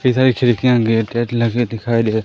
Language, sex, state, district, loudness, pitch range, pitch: Hindi, female, Madhya Pradesh, Umaria, -16 LUFS, 115-125 Hz, 120 Hz